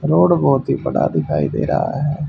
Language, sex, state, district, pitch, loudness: Hindi, male, Haryana, Rohtak, 80 Hz, -17 LUFS